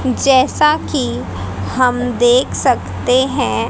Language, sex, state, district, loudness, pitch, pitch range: Hindi, female, Haryana, Jhajjar, -15 LUFS, 255 Hz, 245-265 Hz